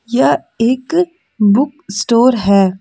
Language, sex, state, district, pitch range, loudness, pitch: Hindi, female, Jharkhand, Deoghar, 205-265 Hz, -14 LUFS, 235 Hz